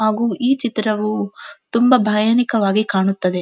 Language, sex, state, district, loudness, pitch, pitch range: Kannada, female, Karnataka, Dharwad, -17 LUFS, 215 Hz, 205-235 Hz